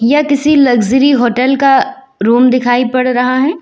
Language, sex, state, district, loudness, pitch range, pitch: Hindi, female, Uttar Pradesh, Lucknow, -11 LUFS, 245-280 Hz, 255 Hz